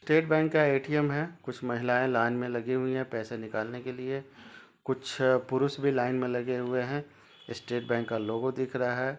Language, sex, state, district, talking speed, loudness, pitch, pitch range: Hindi, male, Jharkhand, Sahebganj, 210 wpm, -30 LUFS, 130 Hz, 120-135 Hz